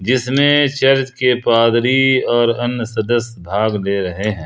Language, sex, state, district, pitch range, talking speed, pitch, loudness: Hindi, male, Jharkhand, Ranchi, 110-130 Hz, 150 wpm, 120 Hz, -15 LUFS